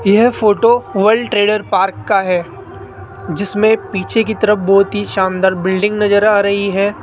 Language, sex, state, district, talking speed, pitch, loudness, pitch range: Hindi, male, Rajasthan, Jaipur, 160 wpm, 205 Hz, -14 LUFS, 195-215 Hz